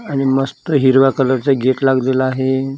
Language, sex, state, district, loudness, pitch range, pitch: Marathi, male, Maharashtra, Gondia, -15 LUFS, 130-135 Hz, 135 Hz